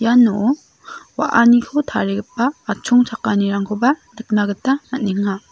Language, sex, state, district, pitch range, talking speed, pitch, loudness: Garo, female, Meghalaya, South Garo Hills, 205-260 Hz, 75 wpm, 235 Hz, -18 LUFS